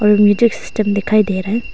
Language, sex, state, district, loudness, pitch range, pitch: Hindi, female, Arunachal Pradesh, Longding, -15 LUFS, 205-215 Hz, 210 Hz